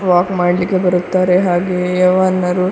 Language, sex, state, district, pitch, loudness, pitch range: Kannada, female, Karnataka, Dakshina Kannada, 180 Hz, -14 LUFS, 180-185 Hz